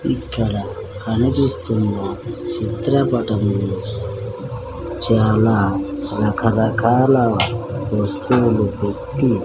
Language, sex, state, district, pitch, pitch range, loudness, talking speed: Telugu, male, Andhra Pradesh, Sri Satya Sai, 110 Hz, 100-120 Hz, -19 LUFS, 45 wpm